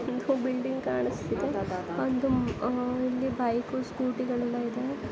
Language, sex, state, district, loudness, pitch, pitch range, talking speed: Kannada, female, Karnataka, Dharwad, -30 LUFS, 250 Hz, 240-255 Hz, 115 wpm